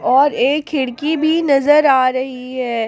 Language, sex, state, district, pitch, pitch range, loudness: Hindi, female, Jharkhand, Palamu, 270 Hz, 255-295 Hz, -15 LUFS